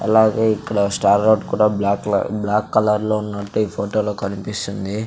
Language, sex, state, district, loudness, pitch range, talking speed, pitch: Telugu, male, Andhra Pradesh, Sri Satya Sai, -19 LUFS, 100-110 Hz, 175 wpm, 105 Hz